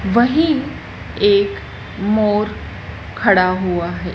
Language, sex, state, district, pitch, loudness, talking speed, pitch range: Hindi, female, Madhya Pradesh, Dhar, 200 Hz, -17 LUFS, 85 wpm, 170-215 Hz